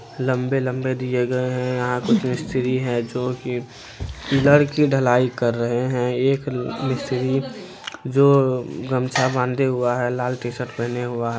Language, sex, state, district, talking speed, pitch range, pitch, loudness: Hindi, male, Bihar, Araria, 150 wpm, 125-130 Hz, 125 Hz, -21 LUFS